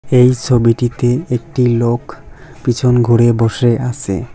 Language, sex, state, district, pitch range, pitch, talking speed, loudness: Bengali, male, West Bengal, Cooch Behar, 115-125 Hz, 120 Hz, 125 wpm, -14 LUFS